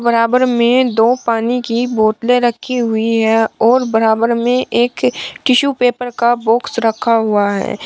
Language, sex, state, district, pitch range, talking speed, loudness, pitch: Hindi, male, Uttar Pradesh, Shamli, 225-245 Hz, 150 wpm, -14 LUFS, 235 Hz